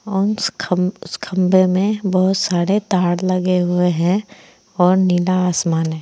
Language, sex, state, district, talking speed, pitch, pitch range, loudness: Hindi, female, Uttar Pradesh, Saharanpur, 160 wpm, 185 Hz, 180-195 Hz, -17 LUFS